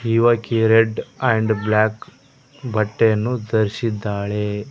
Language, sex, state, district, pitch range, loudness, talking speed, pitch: Kannada, male, Karnataka, Koppal, 105-120 Hz, -19 LUFS, 75 wpm, 110 Hz